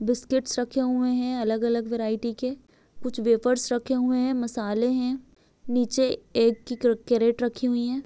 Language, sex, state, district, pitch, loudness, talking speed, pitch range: Hindi, female, Chhattisgarh, Bilaspur, 245 Hz, -25 LUFS, 150 wpm, 235-255 Hz